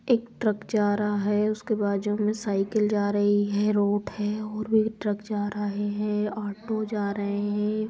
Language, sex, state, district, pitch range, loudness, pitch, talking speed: Angika, female, Bihar, Supaul, 205-215 Hz, -26 LUFS, 210 Hz, 180 wpm